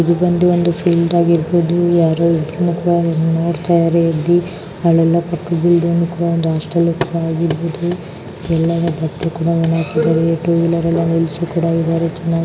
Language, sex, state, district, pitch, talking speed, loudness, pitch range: Kannada, female, Karnataka, Raichur, 170 Hz, 100 wpm, -16 LUFS, 165-170 Hz